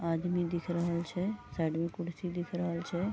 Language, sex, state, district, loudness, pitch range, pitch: Maithili, female, Bihar, Vaishali, -35 LUFS, 170-180 Hz, 175 Hz